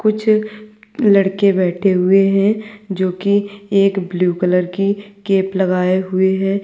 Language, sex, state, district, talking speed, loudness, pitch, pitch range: Hindi, female, Uttar Pradesh, Lalitpur, 135 wpm, -16 LUFS, 195 Hz, 190-205 Hz